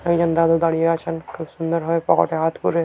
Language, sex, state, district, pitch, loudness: Bengali, male, West Bengal, Jhargram, 165 Hz, -20 LUFS